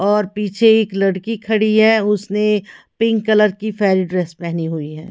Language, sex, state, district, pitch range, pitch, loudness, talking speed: Hindi, female, Haryana, Charkhi Dadri, 185-215 Hz, 210 Hz, -17 LUFS, 165 wpm